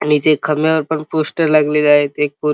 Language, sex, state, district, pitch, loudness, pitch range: Marathi, male, Maharashtra, Chandrapur, 150 Hz, -15 LUFS, 150-155 Hz